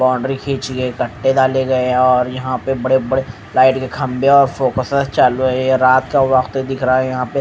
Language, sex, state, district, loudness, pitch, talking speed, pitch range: Hindi, male, Odisha, Malkangiri, -15 LUFS, 130 Hz, 245 wpm, 130-135 Hz